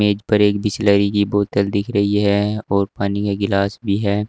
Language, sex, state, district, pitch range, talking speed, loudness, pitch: Hindi, male, Uttar Pradesh, Shamli, 100-105 Hz, 210 wpm, -18 LUFS, 100 Hz